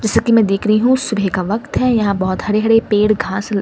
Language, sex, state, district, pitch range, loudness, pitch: Hindi, female, Delhi, New Delhi, 200-225 Hz, -15 LUFS, 215 Hz